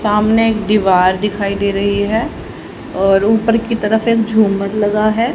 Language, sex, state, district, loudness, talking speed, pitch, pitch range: Hindi, female, Haryana, Charkhi Dadri, -14 LUFS, 170 wpm, 210 Hz, 200-225 Hz